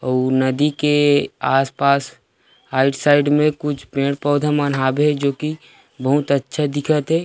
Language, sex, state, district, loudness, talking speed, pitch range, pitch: Chhattisgarhi, male, Chhattisgarh, Rajnandgaon, -18 LUFS, 150 wpm, 135-150 Hz, 145 Hz